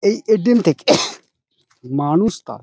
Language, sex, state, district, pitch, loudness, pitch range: Bengali, male, West Bengal, Dakshin Dinajpur, 165 Hz, -17 LUFS, 145-220 Hz